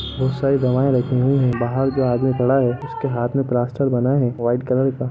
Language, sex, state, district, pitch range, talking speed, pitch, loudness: Hindi, male, Jharkhand, Sahebganj, 125-135 Hz, 235 wpm, 130 Hz, -19 LUFS